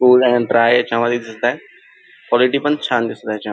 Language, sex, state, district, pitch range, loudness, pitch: Marathi, male, Maharashtra, Nagpur, 115-125 Hz, -16 LUFS, 120 Hz